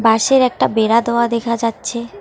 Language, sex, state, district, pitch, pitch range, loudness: Bengali, female, West Bengal, Alipurduar, 235 Hz, 225-235 Hz, -16 LUFS